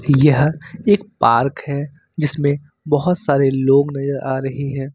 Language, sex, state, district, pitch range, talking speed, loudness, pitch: Hindi, male, Jharkhand, Ranchi, 135-150 Hz, 145 wpm, -18 LUFS, 140 Hz